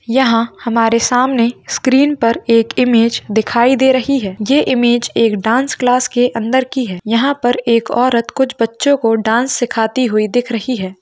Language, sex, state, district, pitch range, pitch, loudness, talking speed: Hindi, female, Bihar, Jamui, 230-255 Hz, 240 Hz, -14 LUFS, 180 wpm